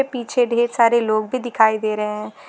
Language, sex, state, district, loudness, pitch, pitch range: Hindi, female, Jharkhand, Garhwa, -19 LUFS, 235 Hz, 215-245 Hz